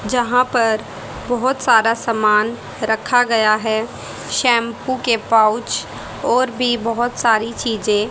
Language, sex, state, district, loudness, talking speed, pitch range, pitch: Hindi, female, Haryana, Rohtak, -17 LUFS, 120 wpm, 220-245 Hz, 230 Hz